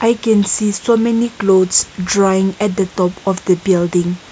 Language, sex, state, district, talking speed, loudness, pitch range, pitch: English, female, Nagaland, Kohima, 180 wpm, -15 LUFS, 185-210 Hz, 195 Hz